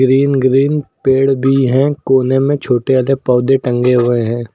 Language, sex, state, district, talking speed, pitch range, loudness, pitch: Hindi, male, Uttar Pradesh, Lucknow, 170 wpm, 125-135 Hz, -13 LUFS, 130 Hz